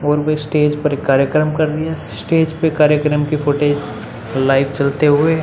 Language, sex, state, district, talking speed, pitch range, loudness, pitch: Hindi, male, Uttar Pradesh, Muzaffarnagar, 175 wpm, 140-155 Hz, -16 LUFS, 150 Hz